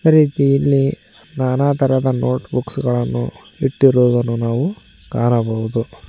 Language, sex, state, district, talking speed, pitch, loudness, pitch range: Kannada, male, Karnataka, Koppal, 90 wpm, 130 Hz, -17 LUFS, 120-140 Hz